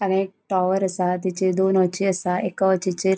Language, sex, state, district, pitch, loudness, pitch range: Konkani, female, Goa, North and South Goa, 190 Hz, -22 LUFS, 185-190 Hz